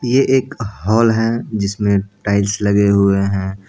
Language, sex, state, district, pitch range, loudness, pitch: Hindi, male, Bihar, Jamui, 100-115 Hz, -16 LUFS, 100 Hz